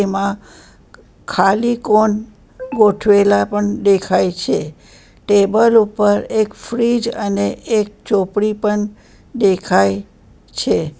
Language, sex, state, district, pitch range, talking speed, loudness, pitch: Gujarati, female, Gujarat, Valsad, 195-220 Hz, 95 wpm, -16 LUFS, 205 Hz